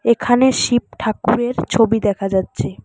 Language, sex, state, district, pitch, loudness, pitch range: Bengali, female, West Bengal, Alipurduar, 225 Hz, -17 LUFS, 205-245 Hz